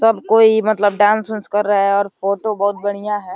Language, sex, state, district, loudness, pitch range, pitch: Hindi, male, Uttar Pradesh, Deoria, -16 LUFS, 200-220 Hz, 210 Hz